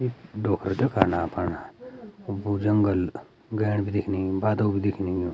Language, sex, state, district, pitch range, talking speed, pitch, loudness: Garhwali, male, Uttarakhand, Uttarkashi, 95-105 Hz, 135 wpm, 100 Hz, -26 LUFS